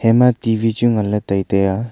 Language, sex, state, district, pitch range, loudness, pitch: Wancho, male, Arunachal Pradesh, Longding, 100-115 Hz, -17 LUFS, 115 Hz